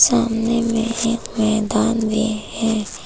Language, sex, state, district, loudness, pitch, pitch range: Hindi, female, Arunachal Pradesh, Papum Pare, -19 LUFS, 225 Hz, 220-230 Hz